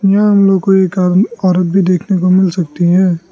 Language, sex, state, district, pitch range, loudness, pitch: Hindi, male, Arunachal Pradesh, Lower Dibang Valley, 180-195 Hz, -12 LUFS, 185 Hz